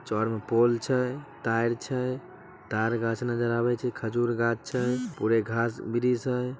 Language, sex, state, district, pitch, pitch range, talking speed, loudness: Magahi, male, Bihar, Samastipur, 120 Hz, 115-125 Hz, 155 wpm, -28 LUFS